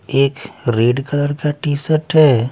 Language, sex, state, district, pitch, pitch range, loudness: Hindi, male, Bihar, Patna, 145 Hz, 135-155 Hz, -16 LUFS